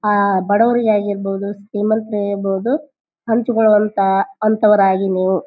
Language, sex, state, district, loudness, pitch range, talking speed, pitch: Kannada, female, Karnataka, Bijapur, -16 LUFS, 195-220 Hz, 90 wpm, 205 Hz